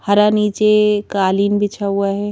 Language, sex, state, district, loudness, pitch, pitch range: Hindi, female, Madhya Pradesh, Bhopal, -16 LUFS, 205 Hz, 200-210 Hz